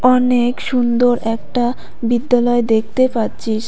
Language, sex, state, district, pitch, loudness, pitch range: Bengali, female, West Bengal, Cooch Behar, 240 Hz, -16 LUFS, 225-250 Hz